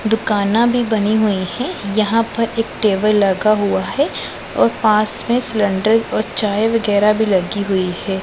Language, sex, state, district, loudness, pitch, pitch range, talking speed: Hindi, female, Punjab, Pathankot, -17 LUFS, 215 Hz, 200-225 Hz, 165 wpm